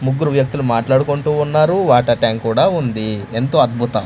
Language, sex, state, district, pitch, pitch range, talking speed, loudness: Telugu, male, Andhra Pradesh, Manyam, 125 Hz, 115-145 Hz, 150 wpm, -16 LUFS